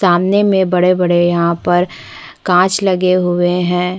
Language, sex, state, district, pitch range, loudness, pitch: Hindi, female, Chhattisgarh, Bastar, 175-185 Hz, -13 LUFS, 180 Hz